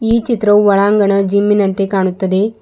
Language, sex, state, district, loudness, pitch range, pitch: Kannada, female, Karnataka, Bidar, -13 LUFS, 195-210 Hz, 200 Hz